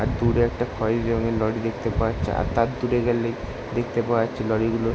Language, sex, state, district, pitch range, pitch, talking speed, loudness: Bengali, male, West Bengal, Jalpaiguri, 110-120 Hz, 115 Hz, 230 wpm, -24 LUFS